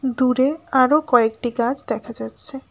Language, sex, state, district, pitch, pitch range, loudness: Bengali, female, West Bengal, Alipurduar, 255 Hz, 235-270 Hz, -20 LUFS